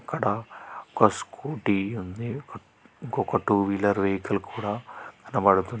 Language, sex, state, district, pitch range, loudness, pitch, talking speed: Telugu, male, Telangana, Hyderabad, 100-115 Hz, -26 LUFS, 100 Hz, 115 wpm